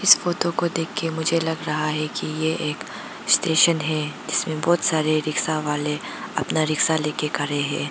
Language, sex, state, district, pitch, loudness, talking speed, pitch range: Hindi, female, Arunachal Pradesh, Lower Dibang Valley, 155 Hz, -22 LUFS, 180 wpm, 155-165 Hz